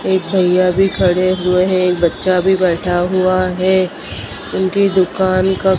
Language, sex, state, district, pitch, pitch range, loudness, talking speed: Hindi, female, Madhya Pradesh, Dhar, 185 Hz, 180-190 Hz, -14 LUFS, 145 wpm